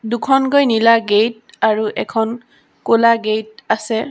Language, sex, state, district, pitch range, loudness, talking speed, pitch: Assamese, female, Assam, Sonitpur, 220-235 Hz, -16 LUFS, 115 wpm, 230 Hz